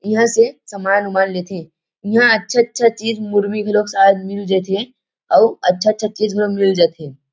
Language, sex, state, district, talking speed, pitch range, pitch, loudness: Chhattisgarhi, male, Chhattisgarh, Rajnandgaon, 170 wpm, 190-215 Hz, 205 Hz, -16 LUFS